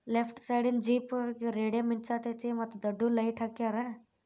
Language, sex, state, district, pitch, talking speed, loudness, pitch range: Kannada, female, Karnataka, Bijapur, 235 Hz, 125 wpm, -33 LUFS, 230-240 Hz